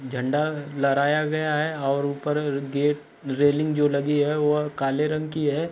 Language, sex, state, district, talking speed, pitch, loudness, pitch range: Hindi, male, Bihar, Gopalganj, 170 wpm, 145 Hz, -24 LUFS, 140-150 Hz